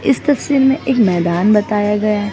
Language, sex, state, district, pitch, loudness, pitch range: Hindi, female, Maharashtra, Mumbai Suburban, 210 Hz, -14 LUFS, 205-270 Hz